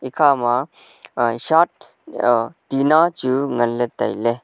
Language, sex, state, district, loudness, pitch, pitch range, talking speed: Wancho, male, Arunachal Pradesh, Longding, -19 LUFS, 130 Hz, 120-150 Hz, 120 wpm